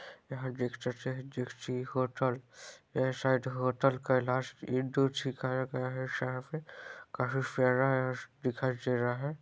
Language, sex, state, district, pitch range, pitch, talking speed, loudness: Hindi, male, Chhattisgarh, Balrampur, 125-130 Hz, 130 Hz, 95 wpm, -33 LUFS